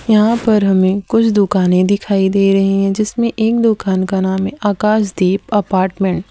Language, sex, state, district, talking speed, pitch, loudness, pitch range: Hindi, female, Gujarat, Valsad, 180 wpm, 200 Hz, -14 LUFS, 190-215 Hz